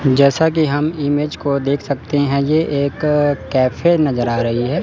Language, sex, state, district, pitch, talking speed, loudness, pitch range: Hindi, male, Chandigarh, Chandigarh, 145 Hz, 185 wpm, -17 LUFS, 135-150 Hz